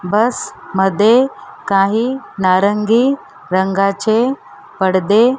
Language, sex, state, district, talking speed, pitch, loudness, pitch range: Marathi, female, Maharashtra, Mumbai Suburban, 80 wpm, 210 Hz, -15 LUFS, 190-240 Hz